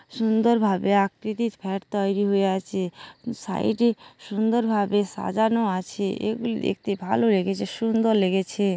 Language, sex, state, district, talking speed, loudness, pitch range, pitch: Bengali, female, West Bengal, Dakshin Dinajpur, 130 wpm, -24 LUFS, 195-225 Hz, 205 Hz